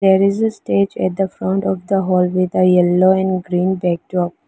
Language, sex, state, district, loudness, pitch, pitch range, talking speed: English, female, Arunachal Pradesh, Lower Dibang Valley, -16 LUFS, 185 Hz, 180-190 Hz, 200 wpm